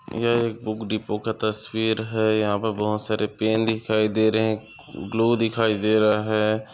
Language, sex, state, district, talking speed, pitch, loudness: Hindi, male, Maharashtra, Aurangabad, 185 wpm, 110 Hz, -23 LUFS